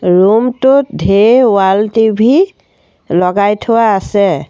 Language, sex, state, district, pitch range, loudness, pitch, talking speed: Assamese, female, Assam, Sonitpur, 195-235 Hz, -10 LUFS, 215 Hz, 105 wpm